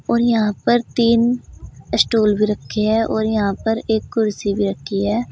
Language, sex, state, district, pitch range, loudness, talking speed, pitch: Hindi, female, Uttar Pradesh, Saharanpur, 210-230 Hz, -18 LUFS, 180 wpm, 220 Hz